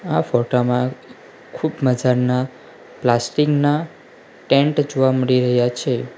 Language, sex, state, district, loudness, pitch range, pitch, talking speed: Gujarati, male, Gujarat, Valsad, -19 LUFS, 125-140 Hz, 125 Hz, 115 wpm